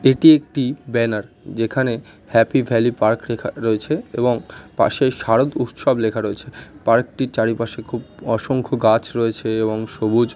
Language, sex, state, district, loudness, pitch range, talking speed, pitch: Bengali, male, West Bengal, North 24 Parganas, -19 LUFS, 110-125 Hz, 140 wpm, 115 Hz